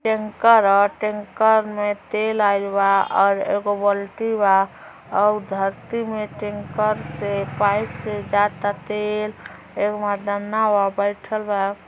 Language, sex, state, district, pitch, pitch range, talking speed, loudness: Hindi, female, Uttar Pradesh, Gorakhpur, 205 Hz, 200-215 Hz, 130 wpm, -21 LUFS